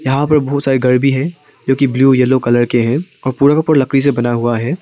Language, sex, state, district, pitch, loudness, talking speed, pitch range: Hindi, male, Arunachal Pradesh, Papum Pare, 135 Hz, -13 LUFS, 285 wpm, 125-140 Hz